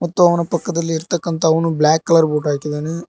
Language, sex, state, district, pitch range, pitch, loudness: Kannada, male, Karnataka, Koppal, 155-170 Hz, 165 Hz, -17 LUFS